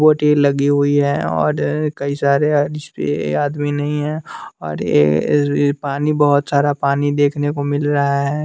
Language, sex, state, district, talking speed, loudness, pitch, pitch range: Hindi, male, Bihar, West Champaran, 155 wpm, -17 LUFS, 145 Hz, 140-145 Hz